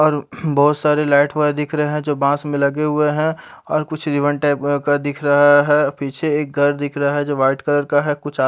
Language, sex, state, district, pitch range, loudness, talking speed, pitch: Hindi, male, Haryana, Charkhi Dadri, 145-150 Hz, -17 LUFS, 245 wpm, 145 Hz